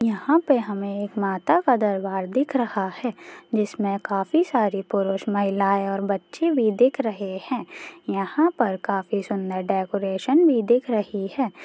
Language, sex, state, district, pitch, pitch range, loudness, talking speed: Hindi, female, Bihar, Purnia, 205 Hz, 195-250 Hz, -23 LUFS, 155 wpm